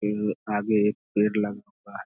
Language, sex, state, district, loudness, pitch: Hindi, male, Bihar, Darbhanga, -26 LUFS, 105 Hz